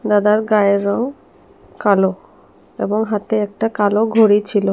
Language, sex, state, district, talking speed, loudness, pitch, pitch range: Bengali, female, Tripura, South Tripura, 125 wpm, -16 LUFS, 210 Hz, 205-220 Hz